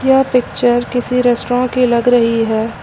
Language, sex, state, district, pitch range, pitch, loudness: Hindi, female, Uttar Pradesh, Lucknow, 235-250 Hz, 245 Hz, -14 LUFS